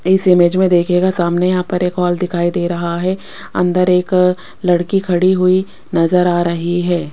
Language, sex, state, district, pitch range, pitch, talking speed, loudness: Hindi, female, Rajasthan, Jaipur, 175-185 Hz, 180 Hz, 185 wpm, -15 LUFS